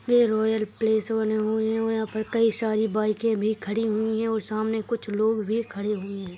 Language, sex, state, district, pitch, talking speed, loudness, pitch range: Hindi, male, Uttarakhand, Tehri Garhwal, 220 Hz, 225 wpm, -25 LUFS, 215-225 Hz